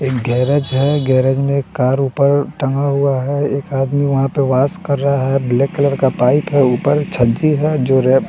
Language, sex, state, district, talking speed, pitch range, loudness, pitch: Hindi, male, Bihar, West Champaran, 205 wpm, 130-145 Hz, -15 LUFS, 140 Hz